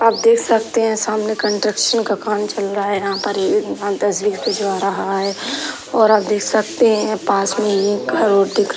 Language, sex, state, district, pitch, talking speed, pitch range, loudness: Hindi, female, Uttar Pradesh, Gorakhpur, 210 Hz, 220 wpm, 200-220 Hz, -17 LUFS